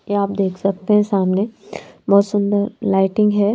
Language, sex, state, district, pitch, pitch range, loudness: Hindi, female, Bihar, Patna, 200 Hz, 195-210 Hz, -18 LUFS